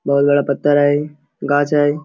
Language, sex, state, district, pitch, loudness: Hindi, male, Jharkhand, Sahebganj, 145 Hz, -16 LUFS